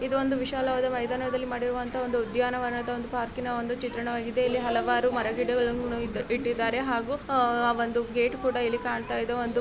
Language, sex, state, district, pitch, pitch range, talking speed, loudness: Kannada, female, Karnataka, Mysore, 245 Hz, 235-250 Hz, 110 wpm, -28 LUFS